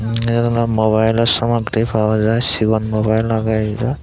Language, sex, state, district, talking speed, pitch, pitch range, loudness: Chakma, male, Tripura, Dhalai, 165 wpm, 110 Hz, 110-115 Hz, -16 LUFS